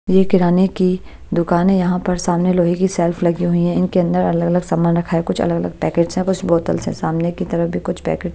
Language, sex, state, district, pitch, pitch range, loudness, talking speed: Hindi, female, Bihar, Patna, 175 Hz, 170-185 Hz, -17 LUFS, 245 wpm